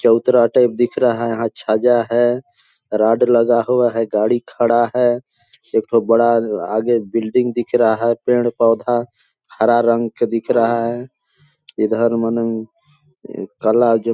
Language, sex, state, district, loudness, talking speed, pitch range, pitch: Hindi, male, Chhattisgarh, Balrampur, -17 LUFS, 145 wpm, 115-120 Hz, 120 Hz